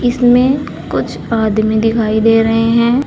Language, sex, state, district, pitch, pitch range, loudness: Hindi, female, Uttar Pradesh, Saharanpur, 225 Hz, 225-245 Hz, -13 LUFS